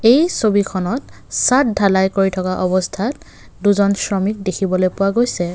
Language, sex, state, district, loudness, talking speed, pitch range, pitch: Assamese, male, Assam, Kamrup Metropolitan, -17 LUFS, 130 wpm, 185-225 Hz, 200 Hz